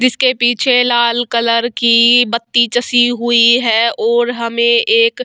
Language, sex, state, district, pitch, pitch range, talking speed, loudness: Hindi, female, Bihar, Vaishali, 240 Hz, 235-250 Hz, 150 wpm, -12 LUFS